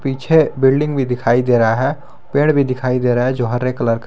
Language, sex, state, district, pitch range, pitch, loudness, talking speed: Hindi, male, Jharkhand, Garhwa, 125-140 Hz, 130 Hz, -16 LUFS, 265 wpm